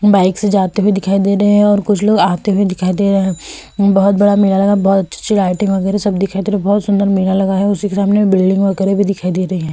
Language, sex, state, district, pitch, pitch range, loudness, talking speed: Hindi, female, Uttar Pradesh, Budaun, 200 Hz, 190-205 Hz, -13 LUFS, 300 wpm